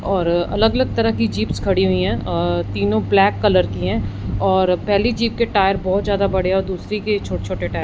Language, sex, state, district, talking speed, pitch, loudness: Hindi, male, Punjab, Fazilka, 220 wpm, 175 Hz, -18 LUFS